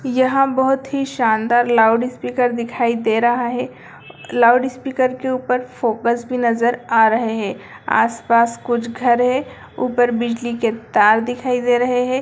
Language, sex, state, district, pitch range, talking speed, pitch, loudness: Hindi, female, Bihar, Sitamarhi, 235-250 Hz, 145 wpm, 240 Hz, -18 LUFS